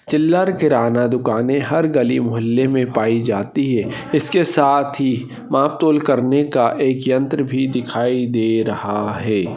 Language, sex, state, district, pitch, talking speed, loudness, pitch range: Hindi, male, Maharashtra, Solapur, 130 Hz, 145 wpm, -17 LUFS, 115-140 Hz